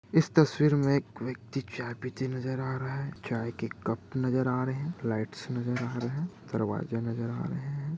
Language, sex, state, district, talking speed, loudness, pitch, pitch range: Hindi, male, Maharashtra, Dhule, 210 wpm, -31 LUFS, 130 Hz, 115-140 Hz